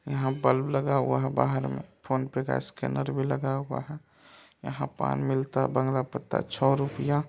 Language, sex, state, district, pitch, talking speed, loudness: Maithili, male, Bihar, Supaul, 135 Hz, 180 wpm, -28 LUFS